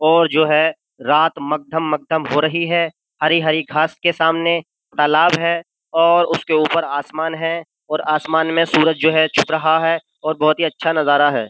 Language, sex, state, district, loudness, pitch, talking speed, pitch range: Hindi, male, Uttar Pradesh, Jyotiba Phule Nagar, -17 LUFS, 160 Hz, 190 wpm, 155-165 Hz